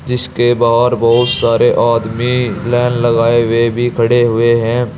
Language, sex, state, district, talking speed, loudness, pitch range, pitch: Hindi, male, Uttar Pradesh, Saharanpur, 145 wpm, -12 LUFS, 115-120 Hz, 120 Hz